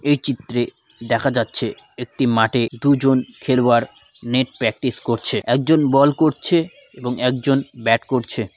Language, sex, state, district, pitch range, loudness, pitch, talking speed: Bengali, male, West Bengal, Dakshin Dinajpur, 120-140 Hz, -19 LUFS, 125 Hz, 135 wpm